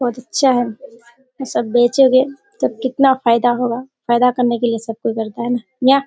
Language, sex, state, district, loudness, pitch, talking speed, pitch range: Hindi, female, Bihar, Kishanganj, -17 LUFS, 245 Hz, 190 wpm, 235-265 Hz